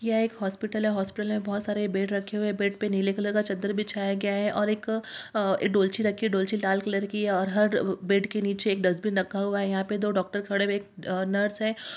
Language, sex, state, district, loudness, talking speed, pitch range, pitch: Hindi, female, Bihar, Purnia, -27 LUFS, 285 wpm, 195-210 Hz, 205 Hz